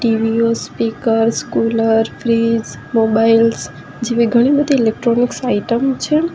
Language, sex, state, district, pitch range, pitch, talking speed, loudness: Gujarati, female, Gujarat, Valsad, 225-240 Hz, 230 Hz, 115 wpm, -15 LUFS